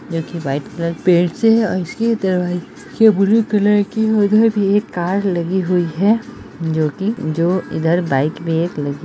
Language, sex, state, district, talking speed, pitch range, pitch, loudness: Hindi, female, Bihar, Araria, 190 wpm, 165-210 Hz, 180 Hz, -17 LUFS